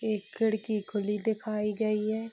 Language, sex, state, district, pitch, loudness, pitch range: Hindi, female, Bihar, Saharsa, 215 Hz, -30 LUFS, 210-220 Hz